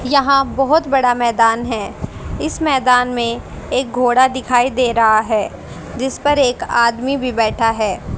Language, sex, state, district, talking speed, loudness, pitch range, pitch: Hindi, female, Haryana, Jhajjar, 155 wpm, -16 LUFS, 235-270 Hz, 250 Hz